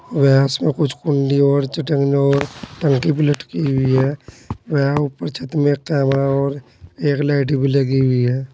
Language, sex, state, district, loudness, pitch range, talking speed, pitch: Hindi, male, Uttar Pradesh, Saharanpur, -18 LUFS, 135-145 Hz, 185 wpm, 140 Hz